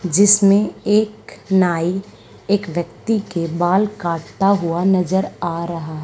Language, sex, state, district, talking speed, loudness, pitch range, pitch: Hindi, female, Haryana, Charkhi Dadri, 120 wpm, -18 LUFS, 170-200 Hz, 185 Hz